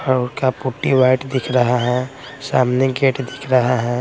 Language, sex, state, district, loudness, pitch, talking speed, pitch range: Hindi, male, Bihar, Patna, -18 LUFS, 130 Hz, 165 wpm, 125-135 Hz